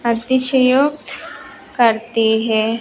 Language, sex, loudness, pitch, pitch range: Hindi, female, -16 LUFS, 250 Hz, 225-275 Hz